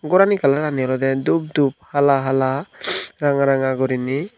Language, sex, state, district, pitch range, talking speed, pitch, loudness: Chakma, male, Tripura, Unakoti, 130-145 Hz, 135 wpm, 140 Hz, -19 LUFS